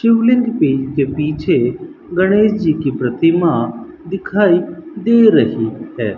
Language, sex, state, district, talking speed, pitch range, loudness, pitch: Hindi, male, Rajasthan, Bikaner, 95 wpm, 140-225 Hz, -15 LUFS, 175 Hz